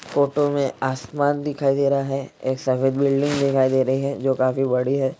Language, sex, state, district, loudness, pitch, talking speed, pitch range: Hindi, male, Bihar, Jahanabad, -21 LUFS, 135 Hz, 210 wpm, 130-140 Hz